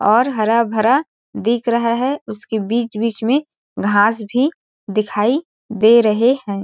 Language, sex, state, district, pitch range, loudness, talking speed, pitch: Hindi, female, Chhattisgarh, Balrampur, 215-245 Hz, -17 LUFS, 135 wpm, 230 Hz